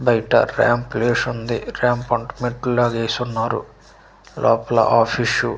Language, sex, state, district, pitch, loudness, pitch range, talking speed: Telugu, male, Andhra Pradesh, Manyam, 120 Hz, -19 LUFS, 115-120 Hz, 120 wpm